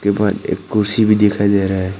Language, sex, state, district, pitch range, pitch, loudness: Hindi, male, Arunachal Pradesh, Papum Pare, 100-105 Hz, 100 Hz, -15 LUFS